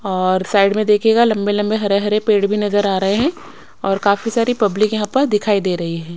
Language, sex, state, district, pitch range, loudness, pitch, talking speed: Hindi, female, Odisha, Sambalpur, 195-215 Hz, -16 LUFS, 205 Hz, 235 wpm